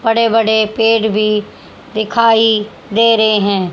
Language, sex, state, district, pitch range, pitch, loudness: Hindi, female, Haryana, Jhajjar, 215-225 Hz, 220 Hz, -13 LUFS